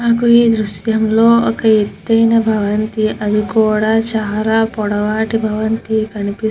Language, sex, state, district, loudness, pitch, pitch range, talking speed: Telugu, female, Andhra Pradesh, Krishna, -14 LUFS, 220 Hz, 215-225 Hz, 120 wpm